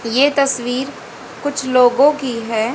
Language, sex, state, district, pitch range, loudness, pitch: Hindi, female, Haryana, Jhajjar, 240-280 Hz, -16 LUFS, 255 Hz